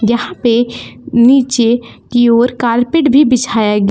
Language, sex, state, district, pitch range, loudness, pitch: Hindi, female, Jharkhand, Palamu, 230-250 Hz, -12 LUFS, 240 Hz